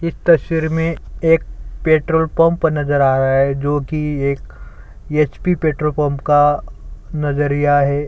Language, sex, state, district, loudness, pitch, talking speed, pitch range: Hindi, male, Chhattisgarh, Sukma, -17 LUFS, 150 Hz, 155 wpm, 140-160 Hz